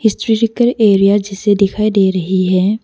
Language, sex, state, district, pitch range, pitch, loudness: Hindi, female, Arunachal Pradesh, Lower Dibang Valley, 195-220 Hz, 205 Hz, -13 LUFS